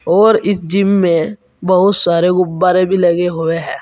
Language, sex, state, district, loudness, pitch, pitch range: Hindi, male, Uttar Pradesh, Saharanpur, -13 LUFS, 180 Hz, 175-195 Hz